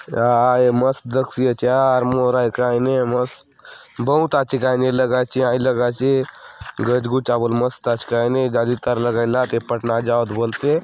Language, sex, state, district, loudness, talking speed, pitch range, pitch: Halbi, male, Chhattisgarh, Bastar, -19 LUFS, 190 wpm, 120-130 Hz, 125 Hz